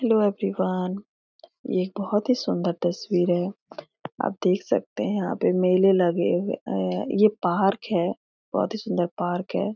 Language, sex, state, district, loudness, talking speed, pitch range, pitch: Hindi, female, Bihar, Jahanabad, -24 LUFS, 160 wpm, 175-205 Hz, 190 Hz